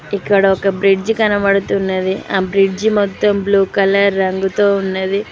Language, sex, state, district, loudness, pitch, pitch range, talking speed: Telugu, female, Telangana, Mahabubabad, -15 LUFS, 195 Hz, 190-200 Hz, 125 wpm